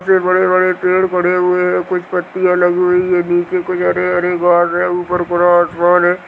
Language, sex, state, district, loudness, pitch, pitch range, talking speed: Hindi, male, Bihar, Purnia, -14 LUFS, 180 Hz, 175-180 Hz, 190 wpm